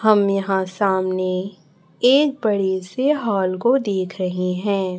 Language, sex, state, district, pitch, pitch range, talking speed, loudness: Hindi, male, Chhattisgarh, Raipur, 195 Hz, 185-215 Hz, 130 wpm, -20 LUFS